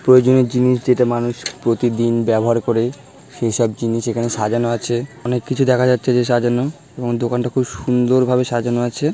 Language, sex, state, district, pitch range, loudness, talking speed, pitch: Bengali, male, West Bengal, Malda, 120-125 Hz, -18 LUFS, 165 wpm, 120 Hz